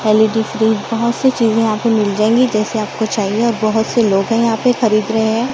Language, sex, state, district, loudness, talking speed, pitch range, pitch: Hindi, female, Maharashtra, Gondia, -15 LUFS, 225 wpm, 215-230 Hz, 220 Hz